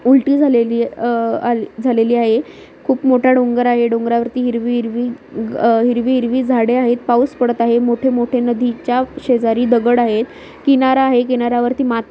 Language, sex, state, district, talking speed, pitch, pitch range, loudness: Marathi, female, Maharashtra, Nagpur, 145 wpm, 240 Hz, 235-255 Hz, -15 LUFS